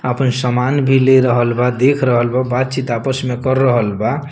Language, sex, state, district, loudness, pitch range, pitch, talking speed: Bhojpuri, male, Bihar, Muzaffarpur, -15 LUFS, 120-130 Hz, 125 Hz, 210 wpm